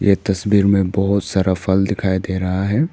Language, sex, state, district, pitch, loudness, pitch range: Hindi, male, Arunachal Pradesh, Papum Pare, 95 Hz, -18 LUFS, 95-100 Hz